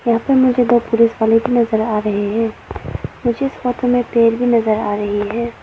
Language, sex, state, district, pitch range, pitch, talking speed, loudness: Hindi, female, Arunachal Pradesh, Lower Dibang Valley, 220-245 Hz, 230 Hz, 225 wpm, -16 LUFS